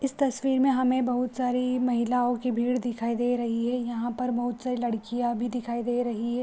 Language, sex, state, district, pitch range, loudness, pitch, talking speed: Hindi, female, Bihar, Vaishali, 240-250 Hz, -27 LUFS, 245 Hz, 215 wpm